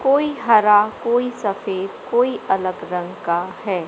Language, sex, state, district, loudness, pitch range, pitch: Hindi, male, Madhya Pradesh, Katni, -19 LUFS, 185-240 Hz, 205 Hz